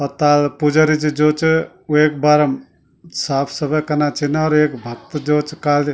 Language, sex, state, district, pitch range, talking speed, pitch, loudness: Garhwali, male, Uttarakhand, Tehri Garhwal, 145-155 Hz, 190 wpm, 150 Hz, -17 LUFS